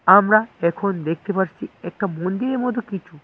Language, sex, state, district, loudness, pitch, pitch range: Bengali, male, West Bengal, Cooch Behar, -21 LUFS, 190 Hz, 170-215 Hz